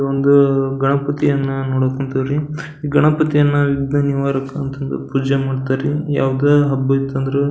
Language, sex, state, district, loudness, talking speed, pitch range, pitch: Kannada, male, Karnataka, Belgaum, -17 LUFS, 120 wpm, 135-145 Hz, 140 Hz